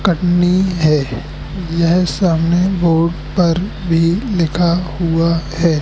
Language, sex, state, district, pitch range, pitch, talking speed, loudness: Hindi, male, Madhya Pradesh, Katni, 165-180 Hz, 170 Hz, 105 wpm, -15 LUFS